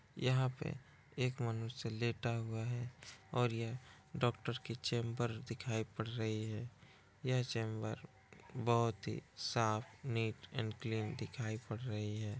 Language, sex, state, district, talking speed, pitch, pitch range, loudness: Hindi, male, Bihar, Kishanganj, 135 wpm, 115 Hz, 110-125 Hz, -40 LUFS